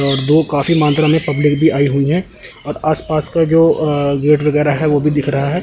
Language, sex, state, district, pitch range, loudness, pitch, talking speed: Hindi, male, Chandigarh, Chandigarh, 145-160 Hz, -14 LUFS, 150 Hz, 265 wpm